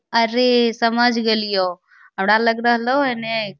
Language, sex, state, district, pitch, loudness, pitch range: Magahi, female, Bihar, Lakhisarai, 230 Hz, -18 LUFS, 215-240 Hz